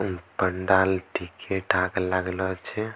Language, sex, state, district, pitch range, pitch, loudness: Angika, male, Bihar, Bhagalpur, 90-95 Hz, 95 Hz, -26 LUFS